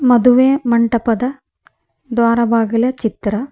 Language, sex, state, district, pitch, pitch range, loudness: Kannada, female, Karnataka, Koppal, 235 Hz, 230-250 Hz, -15 LUFS